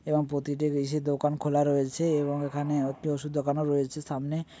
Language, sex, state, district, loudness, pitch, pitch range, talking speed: Bengali, male, West Bengal, Paschim Medinipur, -29 LUFS, 145 Hz, 145-150 Hz, 170 wpm